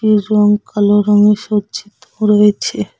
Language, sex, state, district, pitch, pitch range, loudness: Bengali, female, West Bengal, Cooch Behar, 210 Hz, 205-215 Hz, -13 LUFS